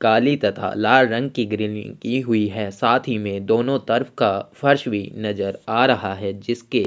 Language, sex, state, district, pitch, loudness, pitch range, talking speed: Hindi, male, Chhattisgarh, Sukma, 115 Hz, -21 LUFS, 105-130 Hz, 200 wpm